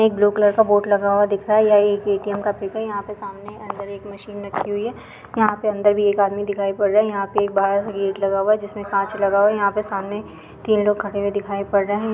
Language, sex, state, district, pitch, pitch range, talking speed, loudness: Hindi, female, Maharashtra, Chandrapur, 205 Hz, 200-210 Hz, 300 wpm, -20 LUFS